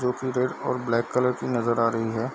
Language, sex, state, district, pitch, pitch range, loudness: Hindi, male, Bihar, Darbhanga, 125 Hz, 115-125 Hz, -25 LUFS